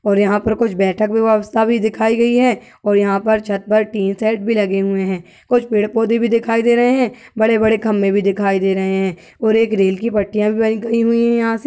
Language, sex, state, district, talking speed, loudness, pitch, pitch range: Hindi, female, Uttar Pradesh, Budaun, 240 wpm, -16 LUFS, 220 Hz, 200-230 Hz